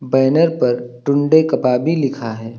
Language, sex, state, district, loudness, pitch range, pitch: Hindi, male, Uttar Pradesh, Lucknow, -16 LUFS, 120-155 Hz, 130 Hz